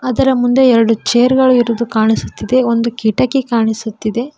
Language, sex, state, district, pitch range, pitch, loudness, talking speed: Kannada, female, Karnataka, Koppal, 225-255 Hz, 240 Hz, -13 LUFS, 135 wpm